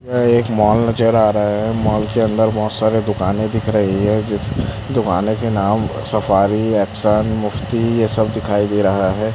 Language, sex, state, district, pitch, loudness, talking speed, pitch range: Hindi, male, Chhattisgarh, Raipur, 110 Hz, -17 LUFS, 185 wpm, 105-110 Hz